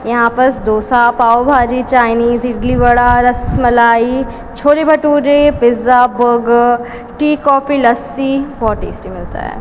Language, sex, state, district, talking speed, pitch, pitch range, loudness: Hindi, female, Chhattisgarh, Raipur, 125 wpm, 245 Hz, 235-265 Hz, -11 LUFS